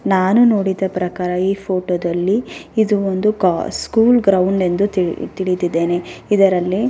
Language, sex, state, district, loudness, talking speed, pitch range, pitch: Kannada, female, Karnataka, Bellary, -17 LUFS, 120 wpm, 180-205 Hz, 190 Hz